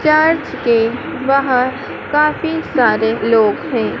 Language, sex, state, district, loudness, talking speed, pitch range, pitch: Hindi, female, Madhya Pradesh, Dhar, -15 LUFS, 105 wpm, 230-305 Hz, 265 Hz